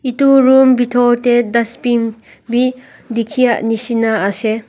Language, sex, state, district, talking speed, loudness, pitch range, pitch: Nagamese, female, Nagaland, Dimapur, 115 wpm, -14 LUFS, 225-255 Hz, 240 Hz